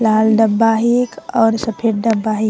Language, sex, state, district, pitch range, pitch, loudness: Sadri, female, Chhattisgarh, Jashpur, 220-230 Hz, 225 Hz, -15 LUFS